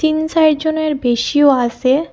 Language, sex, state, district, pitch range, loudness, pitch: Bengali, female, Assam, Hailakandi, 260-315 Hz, -15 LUFS, 295 Hz